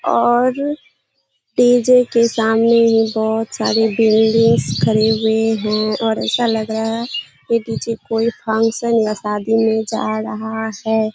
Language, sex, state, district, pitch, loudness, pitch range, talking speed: Hindi, female, Bihar, Kishanganj, 225 Hz, -16 LUFS, 220-230 Hz, 130 wpm